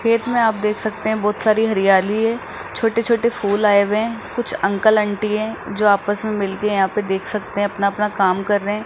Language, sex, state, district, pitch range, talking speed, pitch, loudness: Hindi, male, Rajasthan, Jaipur, 200-220 Hz, 230 wpm, 210 Hz, -19 LUFS